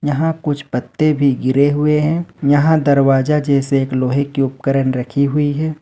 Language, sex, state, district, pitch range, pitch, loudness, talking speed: Hindi, male, Jharkhand, Ranchi, 135-150 Hz, 140 Hz, -16 LUFS, 175 wpm